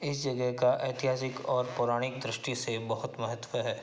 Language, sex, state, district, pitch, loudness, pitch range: Hindi, male, Uttar Pradesh, Hamirpur, 125 Hz, -32 LUFS, 120-130 Hz